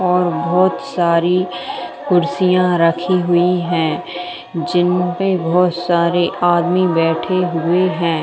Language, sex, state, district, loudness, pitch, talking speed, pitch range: Hindi, female, Bihar, Madhepura, -16 LUFS, 175 Hz, 110 wpm, 170-180 Hz